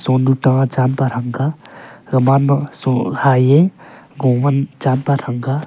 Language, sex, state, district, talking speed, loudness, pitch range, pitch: Wancho, male, Arunachal Pradesh, Longding, 115 wpm, -16 LUFS, 130-140 Hz, 135 Hz